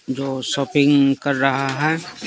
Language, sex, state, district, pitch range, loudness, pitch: Hindi, male, Bihar, Patna, 135-145 Hz, -19 LUFS, 140 Hz